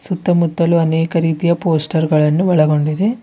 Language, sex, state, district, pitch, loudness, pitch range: Kannada, female, Karnataka, Bidar, 165 Hz, -15 LUFS, 160-175 Hz